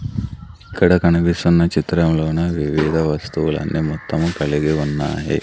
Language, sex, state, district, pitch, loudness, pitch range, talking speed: Telugu, male, Andhra Pradesh, Sri Satya Sai, 80 Hz, -18 LUFS, 75-85 Hz, 90 wpm